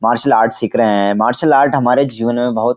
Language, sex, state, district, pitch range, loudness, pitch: Hindi, male, Uttarakhand, Uttarkashi, 110-130 Hz, -13 LUFS, 120 Hz